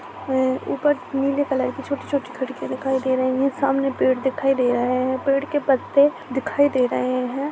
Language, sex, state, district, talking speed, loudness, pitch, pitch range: Hindi, male, Chhattisgarh, Sarguja, 190 wpm, -21 LUFS, 265 Hz, 255-280 Hz